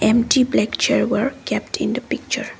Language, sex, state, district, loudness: English, female, Assam, Kamrup Metropolitan, -20 LUFS